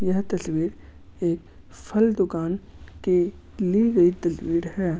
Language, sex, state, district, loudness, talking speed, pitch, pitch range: Hindi, male, Bihar, Gaya, -24 LUFS, 120 wpm, 175 Hz, 165-190 Hz